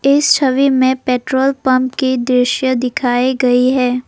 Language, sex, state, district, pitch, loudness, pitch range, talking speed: Hindi, female, Assam, Kamrup Metropolitan, 255 Hz, -14 LUFS, 250-265 Hz, 145 wpm